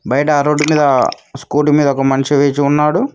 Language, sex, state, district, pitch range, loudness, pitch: Telugu, male, Telangana, Mahabubabad, 140-150 Hz, -13 LUFS, 145 Hz